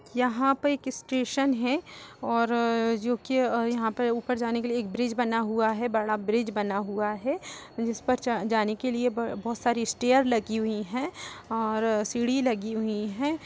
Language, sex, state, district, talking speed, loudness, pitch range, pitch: Hindi, female, Uttar Pradesh, Etah, 175 wpm, -27 LUFS, 220-250 Hz, 235 Hz